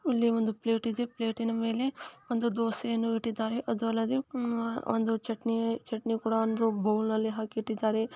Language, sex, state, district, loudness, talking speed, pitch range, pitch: Kannada, female, Karnataka, Chamarajanagar, -30 LUFS, 140 wpm, 225-235 Hz, 230 Hz